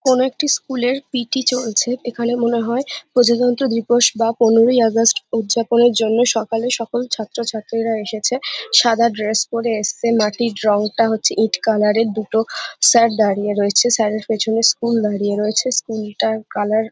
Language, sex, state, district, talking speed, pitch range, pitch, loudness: Bengali, female, West Bengal, Jhargram, 165 wpm, 220-240 Hz, 230 Hz, -17 LUFS